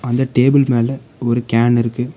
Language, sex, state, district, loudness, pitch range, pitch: Tamil, male, Tamil Nadu, Nilgiris, -16 LUFS, 120-135 Hz, 120 Hz